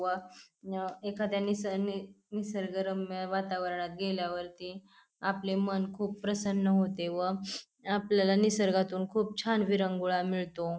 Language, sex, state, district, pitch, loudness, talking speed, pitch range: Marathi, female, Maharashtra, Pune, 195 Hz, -32 LUFS, 105 wpm, 185-200 Hz